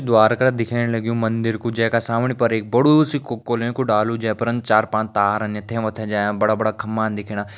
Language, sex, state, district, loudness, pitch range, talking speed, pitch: Garhwali, male, Uttarakhand, Uttarkashi, -20 LUFS, 110-115 Hz, 215 wpm, 115 Hz